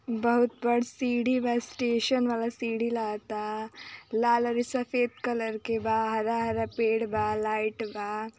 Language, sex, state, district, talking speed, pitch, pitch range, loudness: Hindi, female, Uttar Pradesh, Ghazipur, 165 wpm, 230 Hz, 220-240 Hz, -28 LUFS